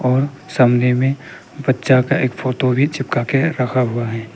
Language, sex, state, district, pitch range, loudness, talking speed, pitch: Hindi, male, Arunachal Pradesh, Papum Pare, 125-140 Hz, -17 LUFS, 180 wpm, 130 Hz